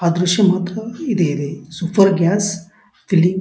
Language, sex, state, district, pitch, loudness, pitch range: Kannada, male, Karnataka, Dharwad, 185 Hz, -17 LUFS, 170-200 Hz